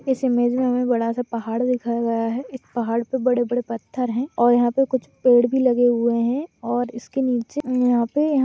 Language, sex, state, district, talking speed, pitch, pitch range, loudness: Hindi, female, Bihar, Madhepura, 225 wpm, 245 Hz, 235-255 Hz, -21 LUFS